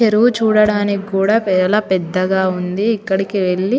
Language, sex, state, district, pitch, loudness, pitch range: Telugu, female, Telangana, Nalgonda, 200 Hz, -16 LUFS, 190-215 Hz